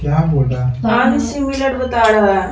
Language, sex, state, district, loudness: Hindi, male, Bihar, Patna, -15 LUFS